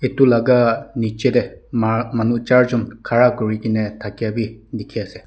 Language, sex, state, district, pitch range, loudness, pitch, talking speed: Nagamese, male, Nagaland, Dimapur, 110-120 Hz, -18 LUFS, 115 Hz, 150 wpm